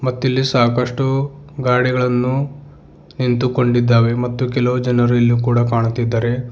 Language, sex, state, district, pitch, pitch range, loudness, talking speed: Kannada, male, Karnataka, Bidar, 125 Hz, 120-130 Hz, -17 LUFS, 90 wpm